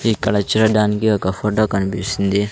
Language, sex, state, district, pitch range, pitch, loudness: Telugu, male, Andhra Pradesh, Sri Satya Sai, 100-110 Hz, 105 Hz, -18 LUFS